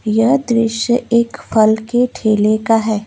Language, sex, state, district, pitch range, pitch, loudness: Hindi, female, West Bengal, Alipurduar, 220-240 Hz, 225 Hz, -15 LUFS